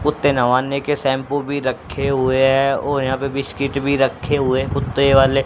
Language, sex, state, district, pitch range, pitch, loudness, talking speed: Hindi, male, Haryana, Charkhi Dadri, 135-140 Hz, 135 Hz, -18 LUFS, 185 wpm